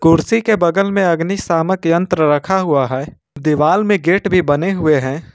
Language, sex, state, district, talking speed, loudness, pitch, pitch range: Hindi, male, Jharkhand, Ranchi, 180 wpm, -15 LUFS, 170 Hz, 150-190 Hz